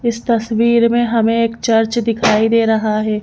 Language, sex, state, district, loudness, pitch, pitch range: Hindi, female, Madhya Pradesh, Bhopal, -15 LUFS, 230 Hz, 220-235 Hz